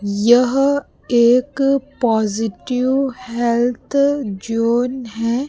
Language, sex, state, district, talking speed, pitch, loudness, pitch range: Hindi, female, Chhattisgarh, Raipur, 65 wpm, 245 Hz, -17 LUFS, 230-270 Hz